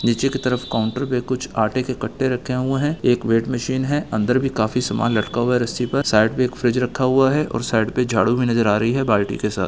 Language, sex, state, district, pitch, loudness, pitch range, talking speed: Hindi, male, Bihar, Gaya, 125 Hz, -20 LUFS, 115-130 Hz, 275 wpm